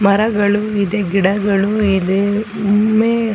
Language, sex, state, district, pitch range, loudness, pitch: Kannada, female, Karnataka, Chamarajanagar, 200-215 Hz, -15 LUFS, 205 Hz